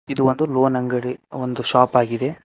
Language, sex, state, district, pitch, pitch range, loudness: Kannada, male, Karnataka, Koppal, 125 Hz, 125-130 Hz, -20 LUFS